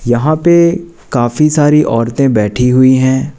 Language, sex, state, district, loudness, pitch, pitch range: Hindi, male, Madhya Pradesh, Katni, -11 LUFS, 135 Hz, 120-155 Hz